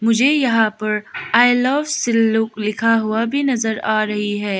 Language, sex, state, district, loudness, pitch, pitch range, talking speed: Hindi, female, Arunachal Pradesh, Lower Dibang Valley, -17 LUFS, 225 Hz, 215-245 Hz, 170 wpm